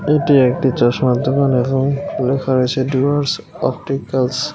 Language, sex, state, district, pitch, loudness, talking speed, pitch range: Bengali, male, West Bengal, Alipurduar, 135 Hz, -16 LUFS, 130 wpm, 130-140 Hz